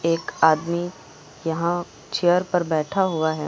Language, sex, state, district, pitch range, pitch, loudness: Hindi, female, Uttar Pradesh, Lucknow, 160-175 Hz, 165 Hz, -22 LUFS